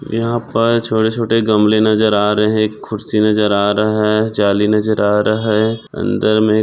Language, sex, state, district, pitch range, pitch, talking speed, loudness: Hindi, male, Maharashtra, Chandrapur, 105-110 Hz, 110 Hz, 190 wpm, -15 LUFS